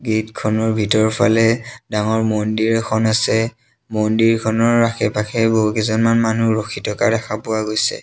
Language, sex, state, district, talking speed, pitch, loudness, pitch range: Assamese, male, Assam, Sonitpur, 125 wpm, 110 Hz, -17 LUFS, 110-115 Hz